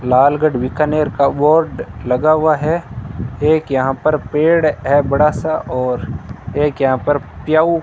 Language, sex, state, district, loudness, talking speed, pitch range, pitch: Hindi, male, Rajasthan, Bikaner, -16 LUFS, 155 wpm, 125-155 Hz, 145 Hz